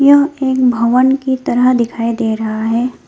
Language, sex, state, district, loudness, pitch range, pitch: Hindi, female, West Bengal, Alipurduar, -14 LUFS, 230-265 Hz, 250 Hz